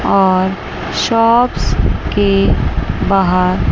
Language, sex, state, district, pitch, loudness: Hindi, female, Chandigarh, Chandigarh, 180 Hz, -14 LUFS